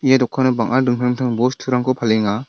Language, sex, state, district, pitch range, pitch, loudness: Garo, male, Meghalaya, West Garo Hills, 120-130 Hz, 125 Hz, -18 LUFS